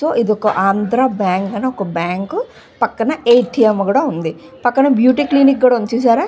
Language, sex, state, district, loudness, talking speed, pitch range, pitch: Telugu, female, Andhra Pradesh, Visakhapatnam, -15 LUFS, 180 wpm, 205-260 Hz, 235 Hz